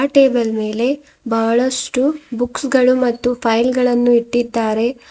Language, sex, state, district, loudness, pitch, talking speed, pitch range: Kannada, female, Karnataka, Bidar, -16 LUFS, 245 Hz, 105 wpm, 235-255 Hz